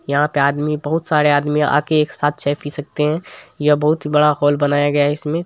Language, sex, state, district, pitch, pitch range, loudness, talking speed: Hindi, male, Bihar, Supaul, 150 Hz, 145-150 Hz, -17 LUFS, 250 wpm